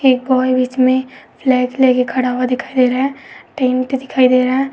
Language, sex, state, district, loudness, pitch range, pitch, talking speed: Hindi, female, Uttar Pradesh, Etah, -15 LUFS, 255-265 Hz, 255 Hz, 215 wpm